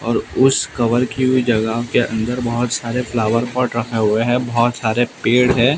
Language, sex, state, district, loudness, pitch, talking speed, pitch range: Hindi, male, Maharashtra, Mumbai Suburban, -17 LUFS, 120 Hz, 95 wpm, 115-125 Hz